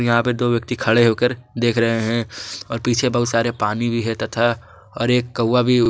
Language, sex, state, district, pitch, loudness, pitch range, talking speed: Hindi, male, Jharkhand, Garhwa, 120 Hz, -19 LUFS, 115-120 Hz, 225 wpm